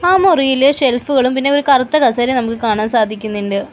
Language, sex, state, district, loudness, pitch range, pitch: Malayalam, female, Kerala, Kollam, -14 LUFS, 225-280 Hz, 255 Hz